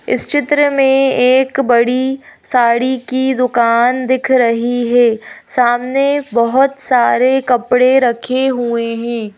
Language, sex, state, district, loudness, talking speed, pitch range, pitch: Hindi, female, Madhya Pradesh, Bhopal, -13 LUFS, 115 wpm, 235-265 Hz, 250 Hz